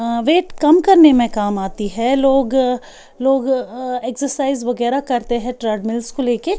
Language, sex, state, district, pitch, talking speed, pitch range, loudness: Hindi, female, Bihar, Patna, 250 Hz, 165 wpm, 235-270 Hz, -16 LUFS